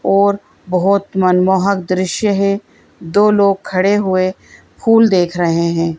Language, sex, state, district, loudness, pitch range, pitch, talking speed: Hindi, female, Madhya Pradesh, Bhopal, -14 LUFS, 180-200 Hz, 190 Hz, 130 wpm